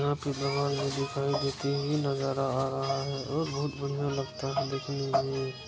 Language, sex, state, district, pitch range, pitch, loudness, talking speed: Hindi, male, Bihar, Araria, 135-140 Hz, 140 Hz, -31 LUFS, 180 wpm